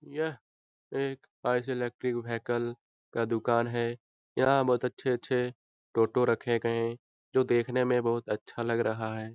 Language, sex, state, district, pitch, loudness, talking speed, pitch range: Hindi, male, Bihar, Lakhisarai, 120 Hz, -30 LUFS, 140 wpm, 115-125 Hz